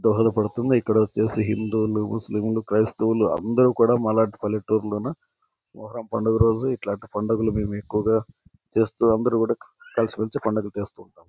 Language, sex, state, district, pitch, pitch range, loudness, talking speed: Telugu, male, Andhra Pradesh, Anantapur, 110 Hz, 110-115 Hz, -23 LUFS, 125 wpm